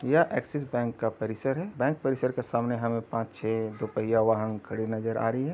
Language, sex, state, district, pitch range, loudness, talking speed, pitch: Hindi, male, Uttar Pradesh, Gorakhpur, 110-135 Hz, -29 LUFS, 225 wpm, 115 Hz